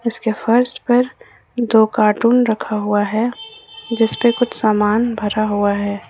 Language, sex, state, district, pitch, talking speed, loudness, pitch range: Hindi, female, Jharkhand, Ranchi, 225 Hz, 155 wpm, -17 LUFS, 210-240 Hz